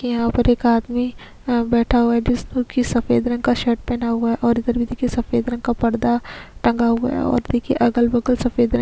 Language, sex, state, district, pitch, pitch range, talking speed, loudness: Hindi, female, Uttarakhand, Tehri Garhwal, 240 Hz, 235-245 Hz, 225 wpm, -19 LUFS